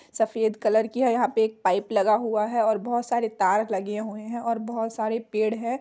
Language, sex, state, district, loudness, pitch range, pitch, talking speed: Hindi, female, Bihar, Muzaffarpur, -25 LUFS, 215-230 Hz, 220 Hz, 235 wpm